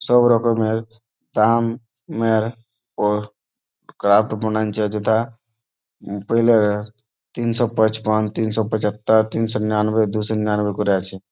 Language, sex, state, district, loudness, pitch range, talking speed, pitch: Bengali, male, West Bengal, Malda, -19 LUFS, 105-115 Hz, 100 wpm, 110 Hz